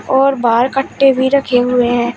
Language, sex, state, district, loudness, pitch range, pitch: Hindi, female, Uttar Pradesh, Shamli, -13 LUFS, 240-270 Hz, 255 Hz